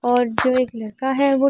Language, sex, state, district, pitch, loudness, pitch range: Hindi, female, Uttar Pradesh, Muzaffarnagar, 255 Hz, -20 LUFS, 245-270 Hz